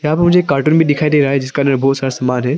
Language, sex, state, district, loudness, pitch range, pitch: Hindi, male, Arunachal Pradesh, Papum Pare, -14 LUFS, 135-155 Hz, 140 Hz